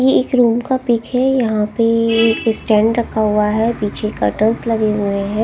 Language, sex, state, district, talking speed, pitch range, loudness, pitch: Hindi, female, Haryana, Jhajjar, 185 wpm, 215-235 Hz, -16 LUFS, 225 Hz